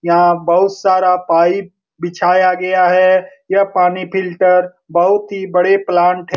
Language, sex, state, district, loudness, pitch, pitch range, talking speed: Hindi, male, Bihar, Lakhisarai, -13 LUFS, 185 Hz, 175-190 Hz, 150 wpm